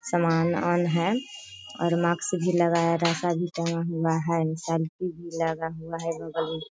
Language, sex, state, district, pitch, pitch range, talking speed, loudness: Hindi, female, Bihar, Sitamarhi, 170 Hz, 165-175 Hz, 170 wpm, -26 LUFS